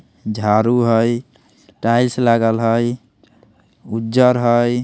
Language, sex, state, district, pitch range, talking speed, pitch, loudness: Bajjika, male, Bihar, Vaishali, 115-120 Hz, 85 wpm, 120 Hz, -16 LUFS